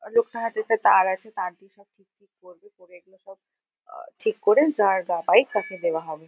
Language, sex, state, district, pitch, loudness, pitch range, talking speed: Bengali, female, West Bengal, Kolkata, 195 Hz, -22 LUFS, 180-220 Hz, 210 wpm